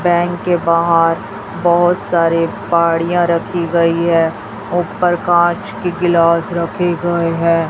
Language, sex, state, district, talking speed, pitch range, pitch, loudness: Hindi, female, Chhattisgarh, Raipur, 125 wpm, 170-175 Hz, 170 Hz, -15 LUFS